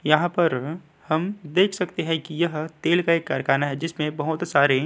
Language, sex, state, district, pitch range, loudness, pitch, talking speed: Hindi, male, Uttarakhand, Tehri Garhwal, 155-170 Hz, -23 LUFS, 160 Hz, 210 wpm